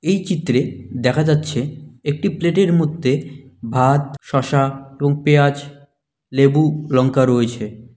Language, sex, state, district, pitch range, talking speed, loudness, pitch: Bengali, male, West Bengal, Malda, 130-150 Hz, 105 wpm, -18 LUFS, 140 Hz